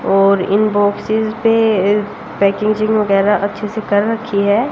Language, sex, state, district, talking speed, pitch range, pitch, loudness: Hindi, female, Haryana, Jhajjar, 155 wpm, 200-220 Hz, 210 Hz, -15 LUFS